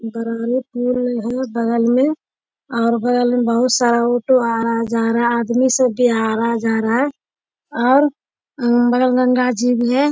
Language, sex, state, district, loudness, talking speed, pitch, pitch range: Hindi, female, Bihar, Bhagalpur, -17 LUFS, 195 wpm, 245 Hz, 230-255 Hz